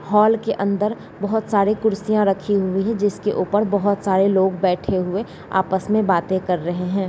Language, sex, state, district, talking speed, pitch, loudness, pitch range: Hindi, female, Bihar, East Champaran, 185 wpm, 200 Hz, -20 LUFS, 190-210 Hz